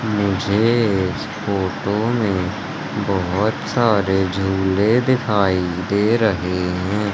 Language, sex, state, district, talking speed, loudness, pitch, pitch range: Hindi, male, Madhya Pradesh, Katni, 90 wpm, -19 LUFS, 100 Hz, 95-110 Hz